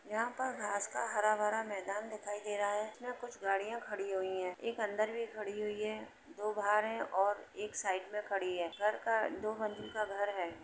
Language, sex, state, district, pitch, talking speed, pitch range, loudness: Hindi, female, Uttar Pradesh, Jalaun, 210 Hz, 220 wpm, 200-215 Hz, -37 LUFS